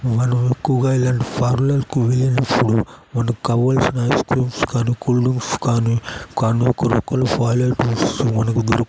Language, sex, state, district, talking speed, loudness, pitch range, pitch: Telugu, male, Andhra Pradesh, Chittoor, 80 wpm, -18 LUFS, 120-130 Hz, 125 Hz